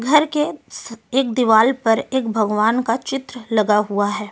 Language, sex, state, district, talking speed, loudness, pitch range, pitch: Hindi, female, Delhi, New Delhi, 180 wpm, -18 LUFS, 215-265 Hz, 230 Hz